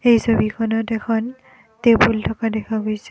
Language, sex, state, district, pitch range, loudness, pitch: Assamese, female, Assam, Kamrup Metropolitan, 220-230 Hz, -19 LUFS, 225 Hz